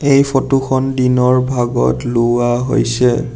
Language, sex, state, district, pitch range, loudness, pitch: Assamese, male, Assam, Sonitpur, 120-135 Hz, -14 LUFS, 125 Hz